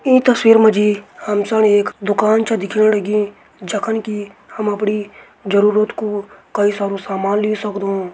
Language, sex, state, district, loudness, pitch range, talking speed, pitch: Garhwali, male, Uttarakhand, Tehri Garhwal, -17 LUFS, 200-215 Hz, 170 wpm, 210 Hz